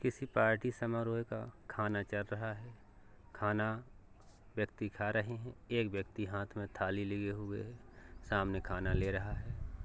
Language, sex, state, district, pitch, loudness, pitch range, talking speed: Hindi, male, Uttar Pradesh, Jalaun, 105 Hz, -38 LUFS, 100-115 Hz, 160 wpm